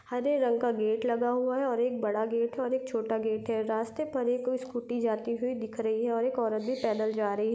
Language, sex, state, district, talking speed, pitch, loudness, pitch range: Hindi, female, Maharashtra, Chandrapur, 270 wpm, 235 Hz, -30 LUFS, 220-250 Hz